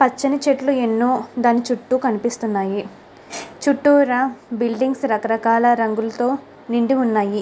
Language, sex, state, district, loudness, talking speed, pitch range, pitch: Telugu, female, Andhra Pradesh, Krishna, -19 LUFS, 135 wpm, 225-265 Hz, 240 Hz